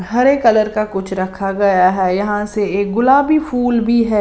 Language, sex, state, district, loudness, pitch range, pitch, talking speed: Hindi, female, Maharashtra, Washim, -15 LUFS, 195-240 Hz, 210 Hz, 200 wpm